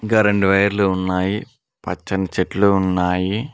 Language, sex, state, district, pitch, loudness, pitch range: Telugu, male, Telangana, Mahabubabad, 95 Hz, -19 LUFS, 90-105 Hz